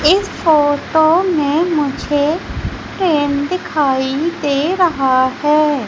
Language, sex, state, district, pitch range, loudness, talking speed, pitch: Hindi, female, Madhya Pradesh, Umaria, 285-330 Hz, -15 LUFS, 90 wpm, 300 Hz